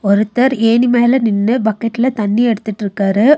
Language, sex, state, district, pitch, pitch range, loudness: Tamil, female, Tamil Nadu, Nilgiris, 230 Hz, 210-245 Hz, -14 LUFS